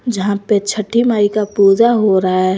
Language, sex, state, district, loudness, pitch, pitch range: Hindi, female, Jharkhand, Garhwa, -14 LUFS, 205 Hz, 200-220 Hz